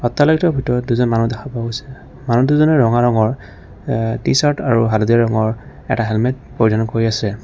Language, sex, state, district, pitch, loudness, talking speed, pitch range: Assamese, male, Assam, Kamrup Metropolitan, 115 Hz, -16 LUFS, 160 wpm, 110-130 Hz